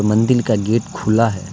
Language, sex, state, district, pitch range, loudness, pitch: Hindi, male, Jharkhand, Deoghar, 105-115 Hz, -17 LUFS, 110 Hz